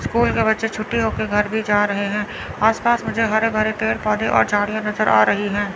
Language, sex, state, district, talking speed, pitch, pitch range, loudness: Hindi, female, Chandigarh, Chandigarh, 240 wpm, 215 Hz, 205-220 Hz, -19 LUFS